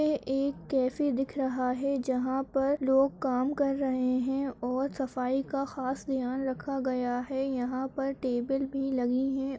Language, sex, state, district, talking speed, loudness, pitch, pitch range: Kumaoni, female, Uttarakhand, Uttarkashi, 170 wpm, -30 LUFS, 265 Hz, 255-275 Hz